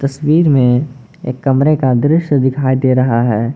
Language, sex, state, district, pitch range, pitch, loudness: Hindi, male, Jharkhand, Garhwa, 125-145 Hz, 130 Hz, -13 LUFS